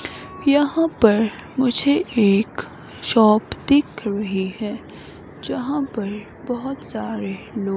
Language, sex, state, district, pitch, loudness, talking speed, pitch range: Hindi, female, Himachal Pradesh, Shimla, 225 Hz, -19 LUFS, 110 wpm, 210-275 Hz